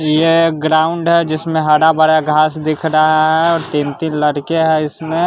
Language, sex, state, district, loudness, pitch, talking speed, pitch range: Hindi, male, Bihar, West Champaran, -14 LUFS, 155 Hz, 180 wpm, 155-165 Hz